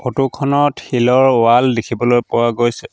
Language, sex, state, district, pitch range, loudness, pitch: Assamese, male, Assam, Sonitpur, 120-135 Hz, -14 LUFS, 125 Hz